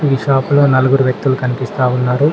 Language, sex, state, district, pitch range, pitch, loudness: Telugu, male, Telangana, Mahabubabad, 130-140 Hz, 130 Hz, -14 LUFS